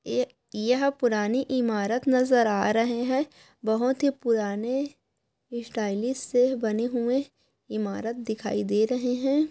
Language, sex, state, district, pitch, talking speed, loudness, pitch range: Hindi, female, Chhattisgarh, Korba, 240 Hz, 125 wpm, -26 LUFS, 220-260 Hz